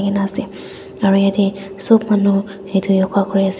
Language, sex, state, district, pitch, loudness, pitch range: Nagamese, female, Nagaland, Dimapur, 195 Hz, -16 LUFS, 195-200 Hz